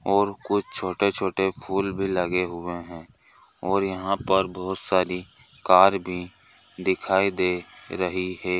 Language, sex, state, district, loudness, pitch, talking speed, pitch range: Hindi, male, Chhattisgarh, Bastar, -24 LUFS, 95 Hz, 135 wpm, 90-100 Hz